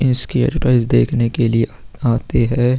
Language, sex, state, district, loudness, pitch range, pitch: Hindi, male, Uttar Pradesh, Hamirpur, -17 LUFS, 115-125 Hz, 120 Hz